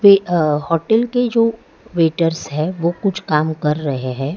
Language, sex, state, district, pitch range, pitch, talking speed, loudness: Hindi, male, Gujarat, Valsad, 150-200 Hz, 165 Hz, 165 wpm, -18 LUFS